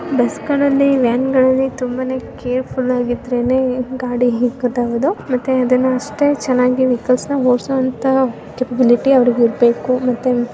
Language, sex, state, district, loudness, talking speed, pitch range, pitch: Kannada, female, Karnataka, Chamarajanagar, -16 LUFS, 80 wpm, 245-260 Hz, 255 Hz